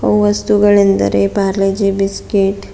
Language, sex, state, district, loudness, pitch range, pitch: Kannada, female, Karnataka, Bidar, -13 LUFS, 195-205 Hz, 195 Hz